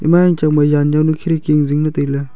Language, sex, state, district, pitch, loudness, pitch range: Wancho, male, Arunachal Pradesh, Longding, 150 Hz, -14 LUFS, 145-155 Hz